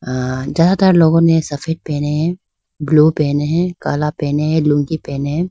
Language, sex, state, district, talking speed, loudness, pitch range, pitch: Hindi, female, Arunachal Pradesh, Lower Dibang Valley, 175 wpm, -15 LUFS, 145-165 Hz, 155 Hz